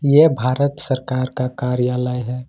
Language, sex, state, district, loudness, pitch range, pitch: Hindi, male, Jharkhand, Ranchi, -19 LUFS, 125-140 Hz, 130 Hz